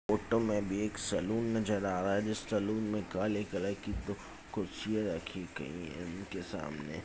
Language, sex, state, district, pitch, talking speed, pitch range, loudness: Hindi, male, Bihar, Jamui, 100 Hz, 185 wpm, 90-105 Hz, -36 LUFS